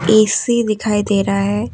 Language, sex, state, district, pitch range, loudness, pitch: Hindi, female, Assam, Kamrup Metropolitan, 200-215 Hz, -16 LUFS, 210 Hz